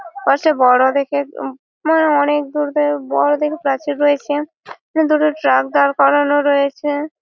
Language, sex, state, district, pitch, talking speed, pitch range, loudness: Bengali, female, West Bengal, Malda, 290 Hz, 140 wpm, 280-300 Hz, -16 LUFS